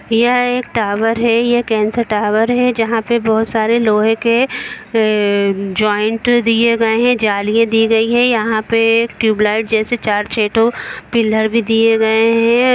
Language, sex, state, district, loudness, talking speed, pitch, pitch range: Hindi, female, Jharkhand, Jamtara, -14 LUFS, 165 wpm, 225 Hz, 220-235 Hz